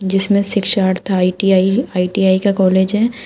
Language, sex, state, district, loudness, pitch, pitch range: Hindi, female, Uttar Pradesh, Shamli, -14 LUFS, 195 Hz, 185-200 Hz